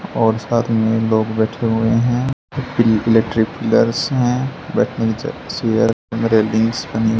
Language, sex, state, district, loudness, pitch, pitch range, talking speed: Hindi, male, Haryana, Charkhi Dadri, -17 LUFS, 115 Hz, 110-120 Hz, 140 wpm